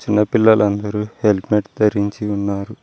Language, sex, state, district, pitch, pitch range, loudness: Telugu, male, Telangana, Mahabubabad, 105 Hz, 100-105 Hz, -17 LUFS